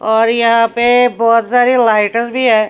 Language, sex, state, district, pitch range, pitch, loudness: Hindi, female, Haryana, Rohtak, 225-245 Hz, 230 Hz, -12 LUFS